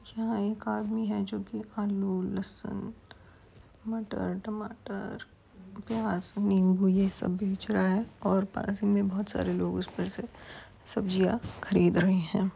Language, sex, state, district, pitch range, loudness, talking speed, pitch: Hindi, female, Uttar Pradesh, Varanasi, 185-215 Hz, -30 LUFS, 150 wpm, 200 Hz